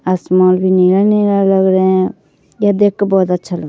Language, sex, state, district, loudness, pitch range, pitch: Hindi, female, Bihar, Begusarai, -13 LUFS, 185-200 Hz, 185 Hz